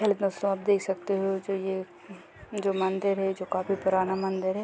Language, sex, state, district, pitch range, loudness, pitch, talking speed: Hindi, female, Uttar Pradesh, Deoria, 190-195 Hz, -28 LUFS, 195 Hz, 180 wpm